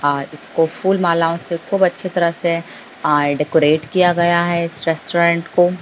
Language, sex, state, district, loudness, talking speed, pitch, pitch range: Hindi, female, Bihar, Bhagalpur, -17 LUFS, 175 wpm, 170 Hz, 160-175 Hz